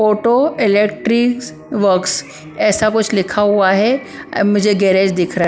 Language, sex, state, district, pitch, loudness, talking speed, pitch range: Hindi, female, Punjab, Pathankot, 205 Hz, -15 LUFS, 155 wpm, 190-220 Hz